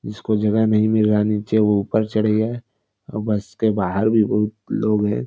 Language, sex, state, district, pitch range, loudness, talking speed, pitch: Hindi, male, Bihar, Darbhanga, 105-110 Hz, -19 LUFS, 215 wpm, 105 Hz